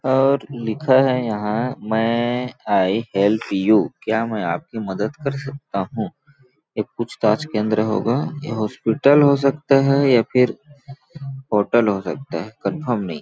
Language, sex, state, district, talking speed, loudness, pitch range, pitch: Hindi, male, Chhattisgarh, Balrampur, 150 wpm, -20 LUFS, 110-135 Hz, 120 Hz